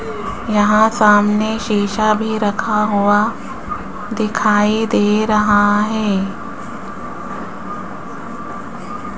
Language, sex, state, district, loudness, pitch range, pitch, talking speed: Hindi, female, Rajasthan, Jaipur, -16 LUFS, 210-225 Hz, 215 Hz, 65 wpm